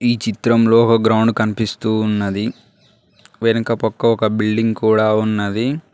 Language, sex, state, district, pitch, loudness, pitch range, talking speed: Telugu, male, Telangana, Mahabubabad, 110 Hz, -17 LUFS, 110-115 Hz, 120 wpm